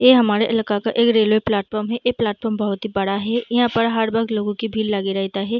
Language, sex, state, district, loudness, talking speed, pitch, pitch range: Hindi, female, Bihar, Gaya, -20 LUFS, 255 wpm, 220 Hz, 210-230 Hz